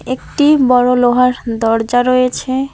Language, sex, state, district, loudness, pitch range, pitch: Bengali, female, West Bengal, Alipurduar, -13 LUFS, 245-260 Hz, 250 Hz